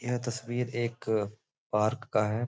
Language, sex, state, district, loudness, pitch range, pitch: Hindi, male, Uttar Pradesh, Gorakhpur, -31 LUFS, 105-120 Hz, 115 Hz